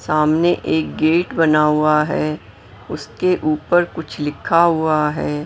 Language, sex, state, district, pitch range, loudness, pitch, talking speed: Hindi, female, Maharashtra, Mumbai Suburban, 150-165 Hz, -17 LUFS, 155 Hz, 130 wpm